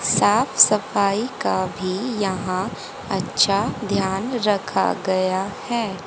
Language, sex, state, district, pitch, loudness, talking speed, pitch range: Hindi, female, Haryana, Jhajjar, 200 Hz, -21 LUFS, 100 wpm, 190-210 Hz